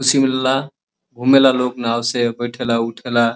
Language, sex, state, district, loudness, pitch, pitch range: Bhojpuri, male, Uttar Pradesh, Deoria, -17 LUFS, 125 Hz, 120-130 Hz